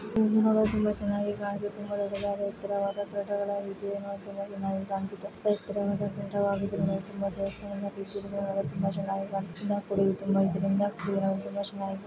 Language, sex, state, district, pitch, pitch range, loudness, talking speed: Kannada, female, Karnataka, Shimoga, 200 Hz, 195-205 Hz, -30 LUFS, 40 wpm